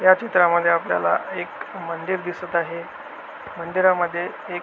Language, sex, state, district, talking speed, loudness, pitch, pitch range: Marathi, male, Maharashtra, Solapur, 155 wpm, -22 LUFS, 175 Hz, 170-185 Hz